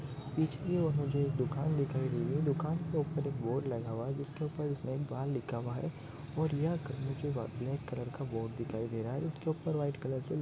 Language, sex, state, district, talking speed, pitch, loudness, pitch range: Hindi, male, Andhra Pradesh, Guntur, 235 wpm, 140 Hz, -36 LUFS, 130-150 Hz